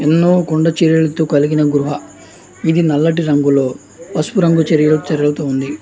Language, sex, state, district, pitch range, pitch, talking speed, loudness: Telugu, male, Andhra Pradesh, Anantapur, 145-165 Hz, 155 Hz, 145 wpm, -14 LUFS